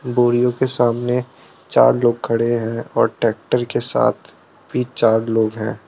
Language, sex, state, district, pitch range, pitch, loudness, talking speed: Hindi, male, Arunachal Pradesh, Lower Dibang Valley, 115-125 Hz, 120 Hz, -18 LUFS, 155 wpm